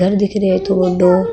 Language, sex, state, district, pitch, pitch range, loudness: Marwari, female, Rajasthan, Nagaur, 190 Hz, 185-200 Hz, -14 LUFS